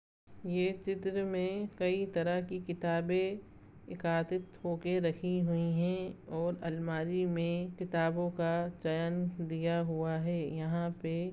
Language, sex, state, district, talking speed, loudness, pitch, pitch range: Hindi, female, Chhattisgarh, Raigarh, 120 wpm, -35 LUFS, 175 Hz, 165-180 Hz